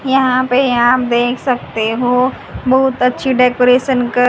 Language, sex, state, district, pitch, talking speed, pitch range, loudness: Hindi, female, Haryana, Jhajjar, 250 Hz, 140 wpm, 245-260 Hz, -14 LUFS